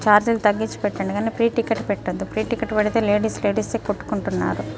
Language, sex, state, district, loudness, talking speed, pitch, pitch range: Telugu, female, Telangana, Nalgonda, -22 LUFS, 175 wpm, 215 Hz, 205-225 Hz